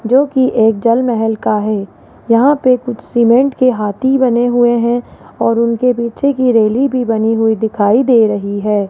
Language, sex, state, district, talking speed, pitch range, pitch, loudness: Hindi, female, Rajasthan, Jaipur, 180 wpm, 220-250 Hz, 235 Hz, -13 LUFS